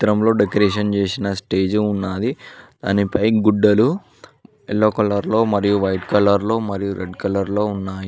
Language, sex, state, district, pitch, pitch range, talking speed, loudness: Telugu, male, Telangana, Mahabubabad, 100 Hz, 100-105 Hz, 140 wpm, -19 LUFS